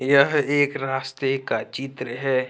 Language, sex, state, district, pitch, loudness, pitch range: Hindi, male, Jharkhand, Ranchi, 135 Hz, -23 LUFS, 130-140 Hz